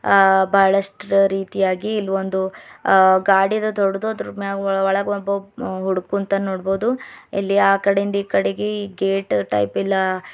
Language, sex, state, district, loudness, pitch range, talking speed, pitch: Kannada, female, Karnataka, Bidar, -19 LUFS, 190-200 Hz, 135 wpm, 195 Hz